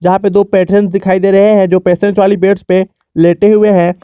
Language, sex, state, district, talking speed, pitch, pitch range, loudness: Hindi, male, Jharkhand, Garhwa, 240 wpm, 195 Hz, 185-200 Hz, -10 LUFS